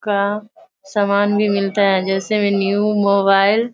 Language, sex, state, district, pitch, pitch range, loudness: Hindi, female, Bihar, Sitamarhi, 205 Hz, 200-210 Hz, -17 LUFS